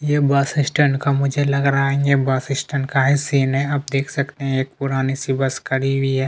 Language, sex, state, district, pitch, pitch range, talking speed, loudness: Hindi, male, Chhattisgarh, Kabirdham, 140 Hz, 135-140 Hz, 250 wpm, -19 LUFS